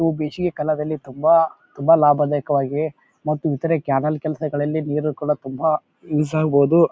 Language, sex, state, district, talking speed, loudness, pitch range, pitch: Kannada, male, Karnataka, Bijapur, 120 wpm, -20 LUFS, 145-155 Hz, 150 Hz